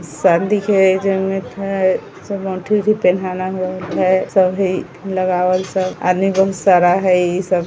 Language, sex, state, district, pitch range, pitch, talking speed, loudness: Bajjika, female, Bihar, Vaishali, 185-195 Hz, 185 Hz, 135 wpm, -16 LUFS